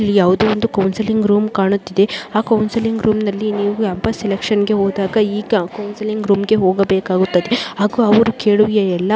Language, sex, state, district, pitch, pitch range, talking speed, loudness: Kannada, female, Karnataka, Mysore, 210 Hz, 195-215 Hz, 120 wpm, -16 LUFS